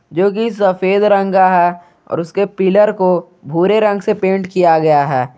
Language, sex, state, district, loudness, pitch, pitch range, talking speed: Hindi, male, Jharkhand, Garhwa, -14 LUFS, 185 Hz, 170-200 Hz, 180 wpm